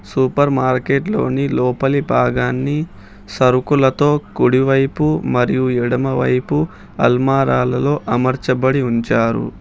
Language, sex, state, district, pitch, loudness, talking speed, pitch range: Telugu, male, Telangana, Hyderabad, 130 Hz, -16 LUFS, 70 wpm, 125-140 Hz